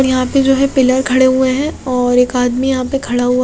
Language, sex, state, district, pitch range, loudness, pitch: Hindi, female, Bihar, Kaimur, 250-270 Hz, -13 LUFS, 260 Hz